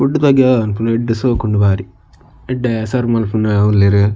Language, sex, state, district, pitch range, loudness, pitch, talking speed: Tulu, male, Karnataka, Dakshina Kannada, 105-120 Hz, -15 LUFS, 110 Hz, 145 wpm